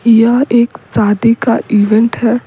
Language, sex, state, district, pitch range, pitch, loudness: Hindi, female, Bihar, Patna, 220-235 Hz, 230 Hz, -11 LUFS